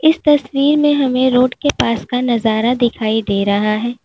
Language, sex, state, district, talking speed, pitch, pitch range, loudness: Hindi, female, Uttar Pradesh, Lalitpur, 190 wpm, 250 Hz, 225-280 Hz, -15 LUFS